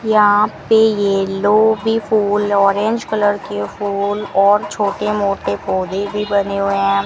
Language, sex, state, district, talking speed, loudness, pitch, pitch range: Hindi, female, Rajasthan, Bikaner, 145 wpm, -16 LUFS, 205 Hz, 200-210 Hz